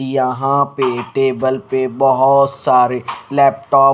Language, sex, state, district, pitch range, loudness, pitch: Hindi, male, Bihar, Kaimur, 130-135 Hz, -15 LUFS, 135 Hz